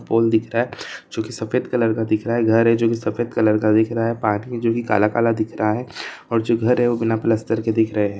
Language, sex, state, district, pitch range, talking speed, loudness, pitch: Hindi, male, Jharkhand, Sahebganj, 110-115 Hz, 285 wpm, -20 LUFS, 115 Hz